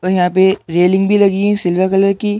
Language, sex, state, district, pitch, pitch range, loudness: Hindi, male, Madhya Pradesh, Bhopal, 190 Hz, 185-200 Hz, -13 LUFS